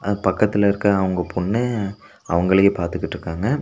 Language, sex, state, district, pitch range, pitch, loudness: Tamil, male, Tamil Nadu, Nilgiris, 90-105 Hz, 100 Hz, -20 LUFS